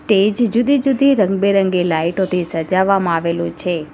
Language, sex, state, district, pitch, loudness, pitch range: Gujarati, female, Gujarat, Valsad, 190 Hz, -16 LUFS, 170-210 Hz